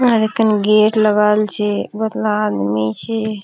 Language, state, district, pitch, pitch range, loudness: Surjapuri, Bihar, Kishanganj, 215 Hz, 210-220 Hz, -16 LUFS